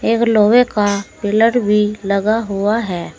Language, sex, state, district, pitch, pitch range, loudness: Hindi, female, Uttar Pradesh, Saharanpur, 210 Hz, 205-225 Hz, -15 LUFS